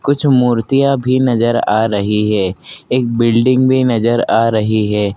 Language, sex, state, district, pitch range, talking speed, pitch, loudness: Hindi, male, Madhya Pradesh, Dhar, 110-130 Hz, 165 wpm, 115 Hz, -13 LUFS